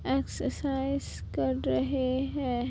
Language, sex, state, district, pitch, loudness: Hindi, female, Uttar Pradesh, Jalaun, 260 Hz, -31 LUFS